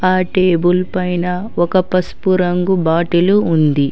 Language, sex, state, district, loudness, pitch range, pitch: Telugu, female, Telangana, Hyderabad, -15 LUFS, 175-185 Hz, 180 Hz